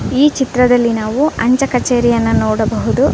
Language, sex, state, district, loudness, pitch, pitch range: Kannada, female, Karnataka, Belgaum, -14 LUFS, 245 Hz, 230-265 Hz